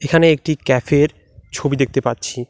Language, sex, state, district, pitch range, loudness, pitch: Bengali, male, West Bengal, Alipurduar, 120-145 Hz, -17 LUFS, 135 Hz